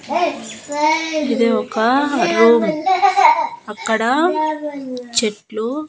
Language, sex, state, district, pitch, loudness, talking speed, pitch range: Telugu, female, Andhra Pradesh, Annamaya, 285 Hz, -17 LUFS, 50 wpm, 230-315 Hz